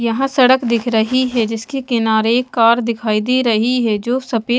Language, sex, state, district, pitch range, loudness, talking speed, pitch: Hindi, female, Odisha, Malkangiri, 225-250 Hz, -16 LUFS, 195 wpm, 235 Hz